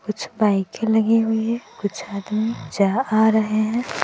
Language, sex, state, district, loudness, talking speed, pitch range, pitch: Hindi, female, Bihar, West Champaran, -21 LUFS, 165 wpm, 205-225 Hz, 220 Hz